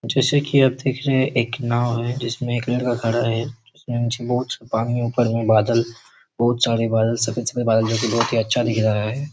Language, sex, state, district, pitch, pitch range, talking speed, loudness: Hindi, male, Chhattisgarh, Raigarh, 120 Hz, 115-125 Hz, 230 wpm, -20 LUFS